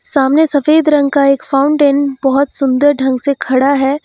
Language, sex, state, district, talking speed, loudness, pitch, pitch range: Hindi, female, Uttar Pradesh, Lucknow, 180 wpm, -12 LUFS, 280 Hz, 270-290 Hz